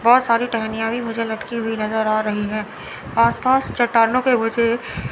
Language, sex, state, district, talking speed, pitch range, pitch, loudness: Hindi, female, Chandigarh, Chandigarh, 175 wpm, 220-235 Hz, 230 Hz, -19 LUFS